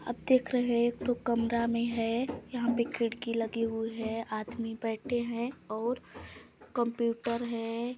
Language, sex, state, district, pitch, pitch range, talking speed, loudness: Hindi, female, Chhattisgarh, Balrampur, 235 Hz, 230-240 Hz, 150 wpm, -32 LUFS